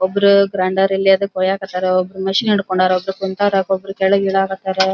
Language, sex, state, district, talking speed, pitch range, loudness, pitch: Kannada, female, Karnataka, Belgaum, 170 wpm, 190-195 Hz, -16 LUFS, 195 Hz